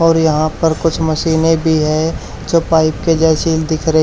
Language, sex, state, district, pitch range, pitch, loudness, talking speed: Hindi, male, Haryana, Charkhi Dadri, 155-165 Hz, 160 Hz, -14 LUFS, 195 wpm